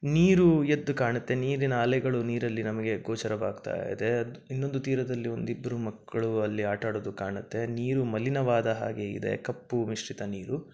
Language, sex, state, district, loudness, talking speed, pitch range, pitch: Kannada, male, Karnataka, Dakshina Kannada, -29 LUFS, 130 wpm, 110-130 Hz, 120 Hz